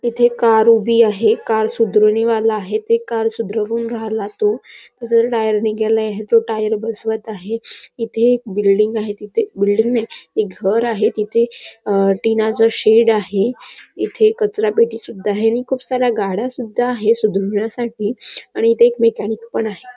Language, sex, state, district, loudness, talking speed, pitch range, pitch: Marathi, female, Maharashtra, Nagpur, -17 LUFS, 155 wpm, 215-235 Hz, 225 Hz